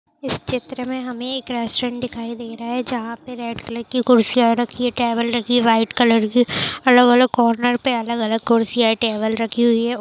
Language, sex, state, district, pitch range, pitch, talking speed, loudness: Hindi, female, Bihar, Madhepura, 230-245 Hz, 235 Hz, 200 wpm, -19 LUFS